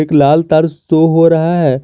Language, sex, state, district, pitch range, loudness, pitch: Hindi, male, Jharkhand, Garhwa, 155-165 Hz, -11 LUFS, 160 Hz